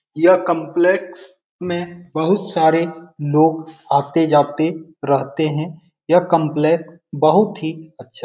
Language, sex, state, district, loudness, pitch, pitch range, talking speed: Hindi, male, Bihar, Saran, -18 LUFS, 165 Hz, 155-175 Hz, 110 wpm